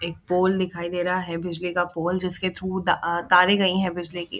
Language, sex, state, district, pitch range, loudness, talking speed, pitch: Hindi, female, Bihar, Jahanabad, 175-185 Hz, -23 LUFS, 230 wpm, 180 Hz